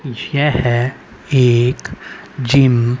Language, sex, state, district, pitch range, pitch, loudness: Hindi, male, Haryana, Rohtak, 120-135 Hz, 125 Hz, -15 LUFS